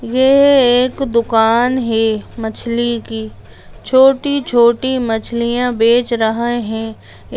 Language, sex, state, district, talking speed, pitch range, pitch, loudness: Hindi, female, Bihar, Lakhisarai, 90 wpm, 225-255 Hz, 235 Hz, -14 LUFS